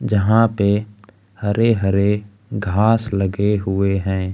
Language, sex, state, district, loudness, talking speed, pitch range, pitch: Hindi, male, Bihar, Kaimur, -18 LUFS, 110 wpm, 100-105 Hz, 100 Hz